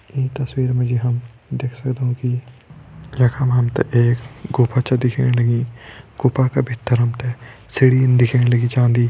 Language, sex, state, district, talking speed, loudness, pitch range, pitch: Hindi, male, Uttarakhand, Tehri Garhwal, 150 wpm, -18 LUFS, 120-130 Hz, 125 Hz